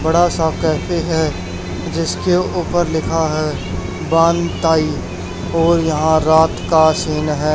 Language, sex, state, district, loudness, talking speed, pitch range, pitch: Hindi, male, Haryana, Charkhi Dadri, -17 LUFS, 125 wpm, 150-165 Hz, 160 Hz